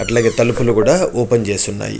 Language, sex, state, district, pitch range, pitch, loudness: Telugu, male, Andhra Pradesh, Chittoor, 115-120 Hz, 120 Hz, -15 LUFS